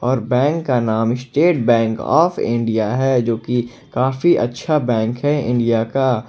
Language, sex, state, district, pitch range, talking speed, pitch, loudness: Hindi, male, Jharkhand, Ranchi, 115-135 Hz, 160 wpm, 120 Hz, -17 LUFS